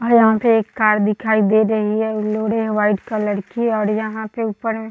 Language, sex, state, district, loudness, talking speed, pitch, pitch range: Hindi, female, Bihar, Sitamarhi, -18 LUFS, 220 wpm, 220 Hz, 210-225 Hz